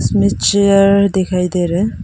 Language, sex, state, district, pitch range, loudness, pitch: Hindi, female, Arunachal Pradesh, Papum Pare, 150-200 Hz, -13 LUFS, 185 Hz